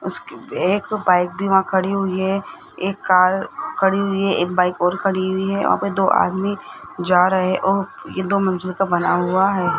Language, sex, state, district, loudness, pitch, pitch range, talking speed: Hindi, male, Rajasthan, Jaipur, -19 LUFS, 190 Hz, 185-195 Hz, 215 wpm